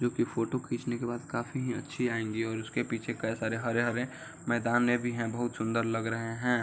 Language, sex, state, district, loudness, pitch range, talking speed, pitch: Hindi, male, Uttar Pradesh, Varanasi, -32 LUFS, 115-120 Hz, 200 wpm, 120 Hz